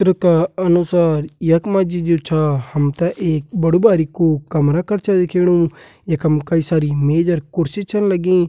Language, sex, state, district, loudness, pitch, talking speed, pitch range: Hindi, male, Uttarakhand, Uttarkashi, -17 LUFS, 170 Hz, 175 wpm, 155-180 Hz